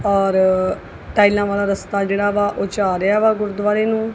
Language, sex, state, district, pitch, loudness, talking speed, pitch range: Punjabi, female, Punjab, Kapurthala, 205 Hz, -18 LUFS, 175 wpm, 195-210 Hz